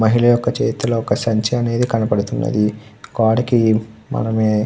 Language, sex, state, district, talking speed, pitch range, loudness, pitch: Telugu, male, Andhra Pradesh, Krishna, 130 wpm, 110-120 Hz, -18 LUFS, 110 Hz